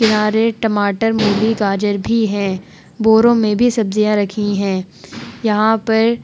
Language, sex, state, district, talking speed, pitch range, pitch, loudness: Hindi, female, Uttar Pradesh, Muzaffarnagar, 145 wpm, 205-225 Hz, 215 Hz, -15 LUFS